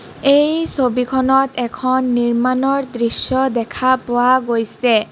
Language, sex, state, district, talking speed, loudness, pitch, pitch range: Assamese, female, Assam, Kamrup Metropolitan, 95 wpm, -16 LUFS, 255 Hz, 240-265 Hz